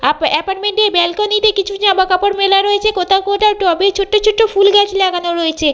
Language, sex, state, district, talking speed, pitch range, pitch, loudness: Bengali, female, West Bengal, Jhargram, 180 wpm, 365-410 Hz, 395 Hz, -13 LUFS